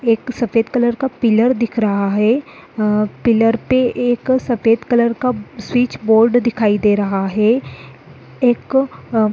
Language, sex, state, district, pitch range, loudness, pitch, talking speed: Hindi, female, Uttar Pradesh, Deoria, 210-245 Hz, -16 LUFS, 230 Hz, 155 wpm